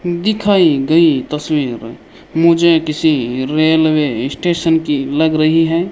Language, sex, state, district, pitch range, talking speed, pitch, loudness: Hindi, male, Rajasthan, Bikaner, 150-170 Hz, 120 wpm, 160 Hz, -14 LUFS